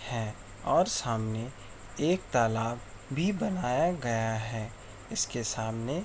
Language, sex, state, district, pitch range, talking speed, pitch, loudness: Hindi, male, Uttar Pradesh, Etah, 105-130 Hz, 120 wpm, 115 Hz, -31 LUFS